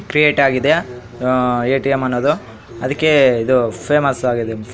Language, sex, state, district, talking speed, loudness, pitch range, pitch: Kannada, male, Karnataka, Raichur, 115 wpm, -16 LUFS, 120-135 Hz, 130 Hz